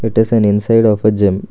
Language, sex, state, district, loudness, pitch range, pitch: English, male, Karnataka, Bangalore, -13 LUFS, 105-115 Hz, 110 Hz